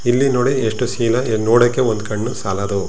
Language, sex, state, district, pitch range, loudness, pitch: Kannada, male, Karnataka, Chamarajanagar, 110-125 Hz, -17 LUFS, 115 Hz